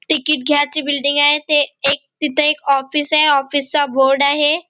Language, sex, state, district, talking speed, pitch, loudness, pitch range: Marathi, female, Maharashtra, Nagpur, 180 wpm, 290 Hz, -14 LUFS, 280-300 Hz